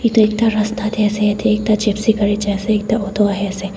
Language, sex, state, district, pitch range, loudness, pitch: Nagamese, female, Nagaland, Dimapur, 205-220 Hz, -17 LUFS, 210 Hz